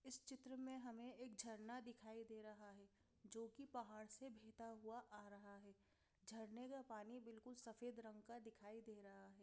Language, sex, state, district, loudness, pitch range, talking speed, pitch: Hindi, female, Bihar, Madhepura, -58 LUFS, 215-245 Hz, 190 wpm, 225 Hz